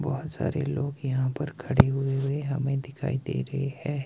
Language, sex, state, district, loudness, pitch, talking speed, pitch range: Hindi, male, Himachal Pradesh, Shimla, -28 LUFS, 140 Hz, 190 wpm, 135-145 Hz